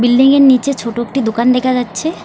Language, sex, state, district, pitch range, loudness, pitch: Bengali, female, West Bengal, Alipurduar, 240-270 Hz, -13 LUFS, 250 Hz